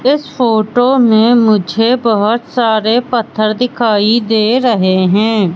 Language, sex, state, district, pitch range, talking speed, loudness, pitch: Hindi, female, Madhya Pradesh, Katni, 215-245 Hz, 120 wpm, -12 LUFS, 225 Hz